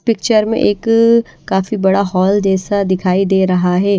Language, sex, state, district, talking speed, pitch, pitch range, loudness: Hindi, female, Haryana, Rohtak, 165 wpm, 195 Hz, 190-215 Hz, -14 LUFS